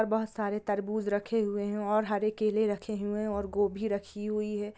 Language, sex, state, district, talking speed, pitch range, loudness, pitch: Hindi, female, Bihar, Gopalganj, 215 wpm, 205-215 Hz, -31 LUFS, 210 Hz